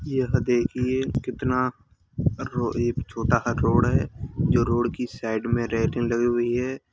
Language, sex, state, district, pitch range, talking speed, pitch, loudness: Hindi, male, Uttar Pradesh, Hamirpur, 120-130 Hz, 145 wpm, 120 Hz, -24 LUFS